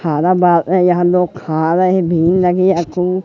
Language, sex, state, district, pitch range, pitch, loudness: Hindi, male, Madhya Pradesh, Katni, 165-185 Hz, 180 Hz, -14 LUFS